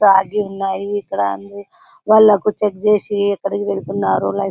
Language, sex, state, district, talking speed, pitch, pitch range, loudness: Telugu, female, Telangana, Karimnagar, 135 wpm, 200 Hz, 195-205 Hz, -17 LUFS